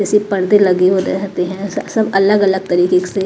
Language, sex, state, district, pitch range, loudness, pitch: Hindi, female, Maharashtra, Mumbai Suburban, 185-205 Hz, -14 LUFS, 195 Hz